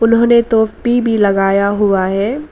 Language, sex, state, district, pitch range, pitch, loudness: Hindi, female, Arunachal Pradesh, Lower Dibang Valley, 200-235 Hz, 220 Hz, -13 LUFS